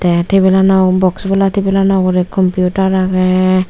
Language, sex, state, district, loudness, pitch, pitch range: Chakma, female, Tripura, Unakoti, -12 LUFS, 185 Hz, 185-195 Hz